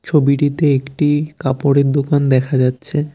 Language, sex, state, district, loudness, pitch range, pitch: Bengali, male, West Bengal, Cooch Behar, -16 LUFS, 135-150 Hz, 140 Hz